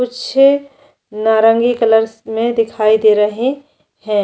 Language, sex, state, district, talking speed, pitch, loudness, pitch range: Hindi, female, Chhattisgarh, Jashpur, 115 wpm, 225 Hz, -14 LUFS, 220-250 Hz